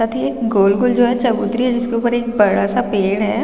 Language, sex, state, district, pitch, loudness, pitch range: Hindi, female, Chhattisgarh, Raigarh, 230 Hz, -16 LUFS, 205-240 Hz